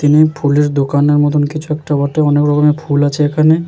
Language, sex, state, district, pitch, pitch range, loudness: Bengali, male, West Bengal, Jalpaiguri, 150 Hz, 145-155 Hz, -13 LUFS